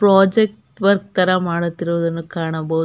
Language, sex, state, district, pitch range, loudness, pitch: Kannada, female, Karnataka, Belgaum, 165-200 Hz, -18 LUFS, 175 Hz